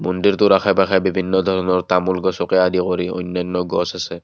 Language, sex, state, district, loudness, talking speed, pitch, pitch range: Assamese, male, Assam, Kamrup Metropolitan, -18 LUFS, 170 wpm, 95 Hz, 90-95 Hz